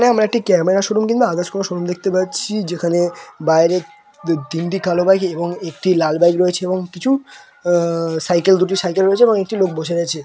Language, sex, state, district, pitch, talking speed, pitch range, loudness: Bengali, male, West Bengal, Purulia, 180 Hz, 195 wpm, 170-195 Hz, -17 LUFS